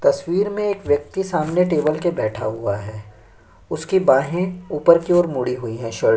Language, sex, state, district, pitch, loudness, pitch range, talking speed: Hindi, male, Chhattisgarh, Sukma, 150 Hz, -20 LUFS, 115-180 Hz, 195 wpm